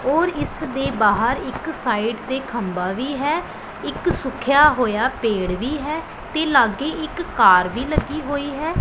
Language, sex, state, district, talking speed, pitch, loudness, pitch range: Punjabi, female, Punjab, Pathankot, 165 wpm, 275 Hz, -20 LUFS, 230-305 Hz